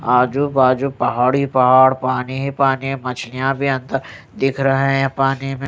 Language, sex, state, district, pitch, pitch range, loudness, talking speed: Hindi, male, Odisha, Nuapada, 135 Hz, 130-135 Hz, -17 LUFS, 180 wpm